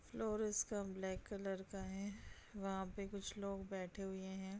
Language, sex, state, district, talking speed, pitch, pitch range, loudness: Hindi, female, Bihar, Begusarai, 170 wpm, 195 Hz, 190-200 Hz, -45 LUFS